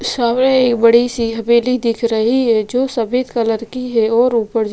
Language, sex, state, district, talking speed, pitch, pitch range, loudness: Hindi, female, Bihar, Vaishali, 190 wpm, 235 Hz, 230-250 Hz, -15 LUFS